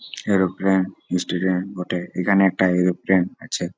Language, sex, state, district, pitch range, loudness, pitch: Bengali, male, West Bengal, Malda, 90-95 Hz, -21 LUFS, 90 Hz